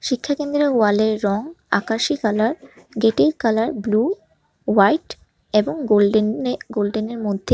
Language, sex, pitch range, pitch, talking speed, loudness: Bengali, male, 215-285 Hz, 225 Hz, 105 wpm, -20 LUFS